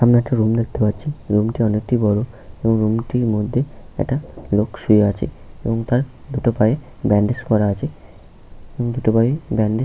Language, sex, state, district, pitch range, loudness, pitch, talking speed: Bengali, male, West Bengal, Paschim Medinipur, 105-125 Hz, -19 LUFS, 115 Hz, 150 wpm